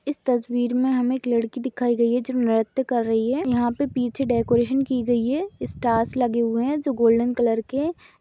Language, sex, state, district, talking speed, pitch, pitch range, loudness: Hindi, female, Chhattisgarh, Bastar, 210 wpm, 245 Hz, 235-260 Hz, -22 LUFS